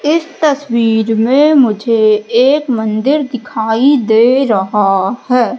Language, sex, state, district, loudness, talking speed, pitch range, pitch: Hindi, female, Madhya Pradesh, Katni, -12 LUFS, 105 wpm, 220-275 Hz, 235 Hz